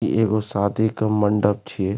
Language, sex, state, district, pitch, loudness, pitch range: Maithili, male, Bihar, Supaul, 105 Hz, -21 LUFS, 100-110 Hz